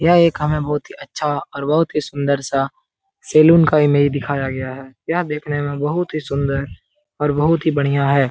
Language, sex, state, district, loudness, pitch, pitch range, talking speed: Hindi, male, Bihar, Lakhisarai, -18 LUFS, 150 Hz, 140-160 Hz, 200 wpm